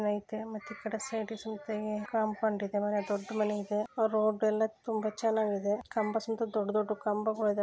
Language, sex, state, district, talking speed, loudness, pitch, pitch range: Kannada, female, Karnataka, Bellary, 175 wpm, -33 LUFS, 215 Hz, 210-220 Hz